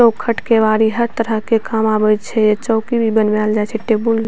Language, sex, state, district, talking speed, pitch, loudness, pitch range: Maithili, female, Bihar, Purnia, 210 wpm, 220 Hz, -16 LUFS, 215-230 Hz